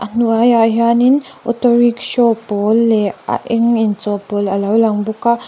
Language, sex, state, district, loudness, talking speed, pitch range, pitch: Mizo, female, Mizoram, Aizawl, -14 LUFS, 185 wpm, 210-235 Hz, 230 Hz